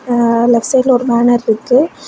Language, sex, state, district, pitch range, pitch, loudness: Tamil, female, Tamil Nadu, Kanyakumari, 235-255 Hz, 240 Hz, -12 LUFS